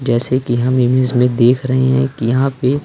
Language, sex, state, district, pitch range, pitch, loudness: Hindi, male, Madhya Pradesh, Umaria, 125-130 Hz, 130 Hz, -14 LUFS